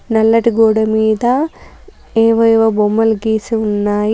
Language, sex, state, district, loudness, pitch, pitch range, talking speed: Telugu, female, Telangana, Komaram Bheem, -13 LUFS, 225 Hz, 220-225 Hz, 100 wpm